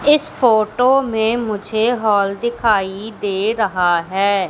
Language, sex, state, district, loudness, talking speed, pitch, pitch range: Hindi, female, Madhya Pradesh, Katni, -17 LUFS, 120 wpm, 215 Hz, 200-235 Hz